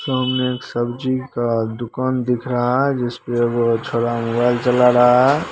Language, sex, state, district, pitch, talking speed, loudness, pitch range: Maithili, male, Bihar, Begusarai, 125 Hz, 165 wpm, -18 LUFS, 120-130 Hz